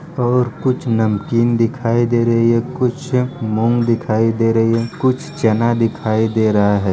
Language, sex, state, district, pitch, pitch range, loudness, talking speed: Hindi, male, Bihar, Darbhanga, 115 Hz, 110-125 Hz, -16 LUFS, 175 wpm